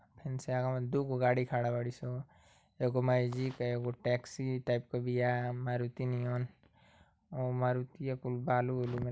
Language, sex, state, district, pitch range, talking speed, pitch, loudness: Bhojpuri, male, Uttar Pradesh, Ghazipur, 125-130 Hz, 165 wpm, 125 Hz, -35 LUFS